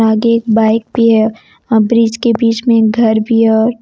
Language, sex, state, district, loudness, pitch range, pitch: Hindi, female, Jharkhand, Deoghar, -11 LUFS, 220-230 Hz, 225 Hz